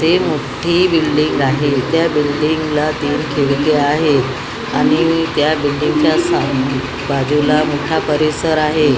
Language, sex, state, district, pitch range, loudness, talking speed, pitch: Marathi, female, Maharashtra, Gondia, 145-155 Hz, -15 LUFS, 100 wpm, 150 Hz